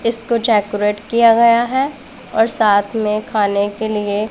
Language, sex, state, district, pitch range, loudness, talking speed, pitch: Hindi, female, Punjab, Pathankot, 210-235 Hz, -16 LUFS, 155 wpm, 220 Hz